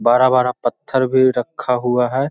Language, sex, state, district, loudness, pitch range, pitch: Hindi, male, Bihar, Sitamarhi, -17 LUFS, 125-130 Hz, 125 Hz